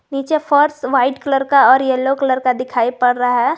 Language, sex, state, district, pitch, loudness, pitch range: Hindi, female, Jharkhand, Garhwa, 265 Hz, -15 LUFS, 255-280 Hz